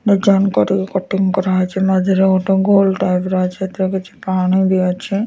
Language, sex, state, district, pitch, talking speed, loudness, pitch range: Odia, female, Odisha, Nuapada, 190 Hz, 170 wpm, -16 LUFS, 185-195 Hz